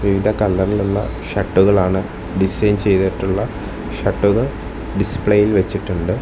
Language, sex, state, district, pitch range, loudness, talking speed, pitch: Malayalam, male, Kerala, Thiruvananthapuram, 95-105 Hz, -18 LUFS, 75 wpm, 100 Hz